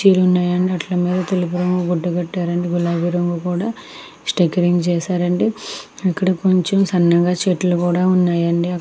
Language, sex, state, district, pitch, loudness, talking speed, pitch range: Telugu, female, Andhra Pradesh, Krishna, 180 Hz, -18 LUFS, 135 wpm, 175-185 Hz